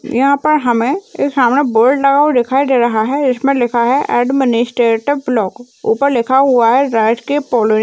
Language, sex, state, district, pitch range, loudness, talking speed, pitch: Hindi, female, Uttarakhand, Uttarkashi, 235-280 Hz, -13 LUFS, 185 wpm, 255 Hz